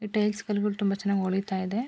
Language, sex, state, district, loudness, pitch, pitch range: Kannada, female, Karnataka, Mysore, -28 LUFS, 200 Hz, 195-210 Hz